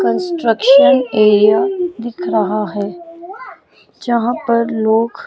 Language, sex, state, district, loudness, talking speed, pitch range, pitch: Hindi, female, Chandigarh, Chandigarh, -14 LUFS, 90 wpm, 220-335 Hz, 235 Hz